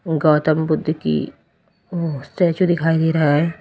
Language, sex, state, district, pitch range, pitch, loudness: Hindi, female, Uttar Pradesh, Lalitpur, 150-165 Hz, 160 Hz, -18 LUFS